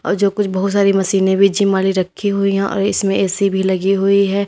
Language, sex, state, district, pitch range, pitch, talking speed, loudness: Hindi, female, Uttar Pradesh, Lalitpur, 195-200 Hz, 195 Hz, 255 wpm, -15 LUFS